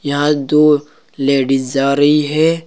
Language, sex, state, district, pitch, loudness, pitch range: Hindi, male, Uttar Pradesh, Saharanpur, 145 Hz, -14 LUFS, 140-150 Hz